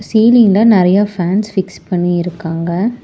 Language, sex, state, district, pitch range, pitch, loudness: Tamil, male, Tamil Nadu, Chennai, 175-220 Hz, 190 Hz, -13 LUFS